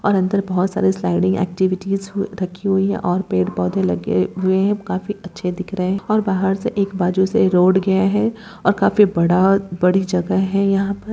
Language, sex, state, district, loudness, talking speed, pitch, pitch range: Hindi, female, Chhattisgarh, Bilaspur, -18 LUFS, 200 wpm, 190 Hz, 180-200 Hz